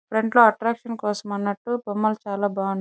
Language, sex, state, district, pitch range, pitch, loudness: Telugu, male, Andhra Pradesh, Chittoor, 205-230 Hz, 215 Hz, -23 LUFS